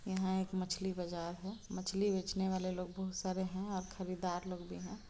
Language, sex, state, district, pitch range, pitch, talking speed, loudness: Hindi, female, Bihar, Muzaffarpur, 180-190 Hz, 185 Hz, 200 wpm, -39 LUFS